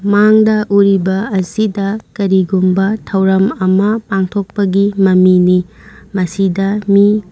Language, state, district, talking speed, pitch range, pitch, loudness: Manipuri, Manipur, Imphal West, 100 wpm, 190-205 Hz, 195 Hz, -13 LUFS